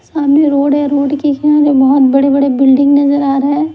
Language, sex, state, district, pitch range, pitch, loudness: Hindi, male, Delhi, New Delhi, 275-290 Hz, 285 Hz, -10 LUFS